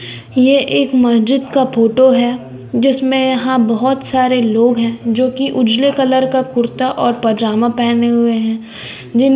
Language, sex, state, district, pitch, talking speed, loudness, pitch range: Hindi, female, Bihar, West Champaran, 245 Hz, 140 wpm, -13 LUFS, 230-260 Hz